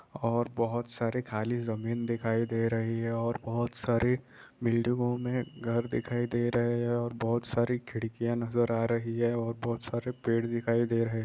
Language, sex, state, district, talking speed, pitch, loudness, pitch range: Hindi, male, Bihar, East Champaran, 180 wpm, 120 Hz, -31 LUFS, 115-120 Hz